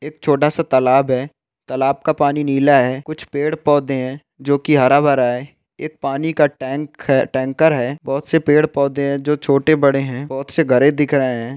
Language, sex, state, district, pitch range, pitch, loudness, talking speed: Hindi, male, Rajasthan, Nagaur, 135-150 Hz, 140 Hz, -17 LUFS, 195 wpm